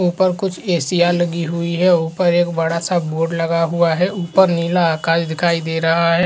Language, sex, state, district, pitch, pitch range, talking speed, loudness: Hindi, male, Uttar Pradesh, Hamirpur, 170 Hz, 165-175 Hz, 200 wpm, -17 LUFS